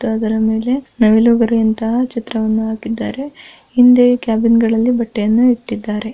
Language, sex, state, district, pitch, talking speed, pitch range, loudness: Kannada, female, Karnataka, Mysore, 230 Hz, 135 wpm, 220-245 Hz, -14 LUFS